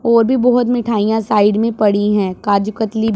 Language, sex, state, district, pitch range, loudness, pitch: Hindi, female, Punjab, Pathankot, 210-230 Hz, -15 LUFS, 220 Hz